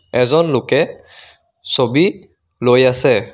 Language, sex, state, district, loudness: Assamese, male, Assam, Kamrup Metropolitan, -15 LUFS